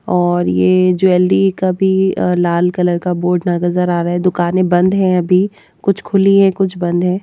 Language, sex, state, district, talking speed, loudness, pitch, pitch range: Hindi, female, Haryana, Jhajjar, 175 wpm, -14 LUFS, 180 Hz, 175-190 Hz